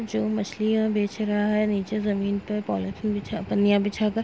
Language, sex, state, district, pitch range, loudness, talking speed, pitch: Hindi, female, Uttar Pradesh, Etah, 205-215 Hz, -25 LUFS, 185 wpm, 210 Hz